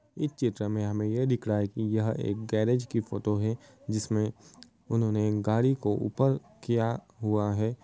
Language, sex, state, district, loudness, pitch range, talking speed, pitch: Hindi, male, Uttar Pradesh, Varanasi, -29 LUFS, 105-120 Hz, 185 wpm, 110 Hz